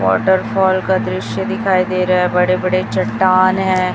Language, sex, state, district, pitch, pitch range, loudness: Hindi, female, Chhattisgarh, Raipur, 185 Hz, 180-185 Hz, -15 LUFS